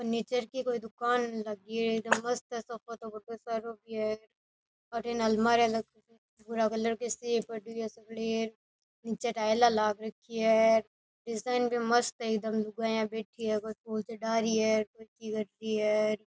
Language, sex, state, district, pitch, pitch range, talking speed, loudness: Rajasthani, female, Rajasthan, Nagaur, 225 Hz, 220-230 Hz, 140 wpm, -31 LUFS